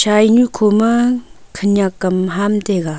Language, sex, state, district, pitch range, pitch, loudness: Wancho, female, Arunachal Pradesh, Longding, 190-225 Hz, 205 Hz, -15 LUFS